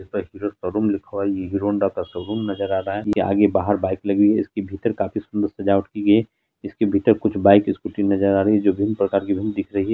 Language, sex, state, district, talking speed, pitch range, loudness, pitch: Hindi, female, Bihar, Araria, 260 wpm, 100-105 Hz, -21 LUFS, 100 Hz